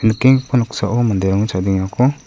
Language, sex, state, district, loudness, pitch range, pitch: Garo, male, Meghalaya, South Garo Hills, -16 LUFS, 95-125 Hz, 110 Hz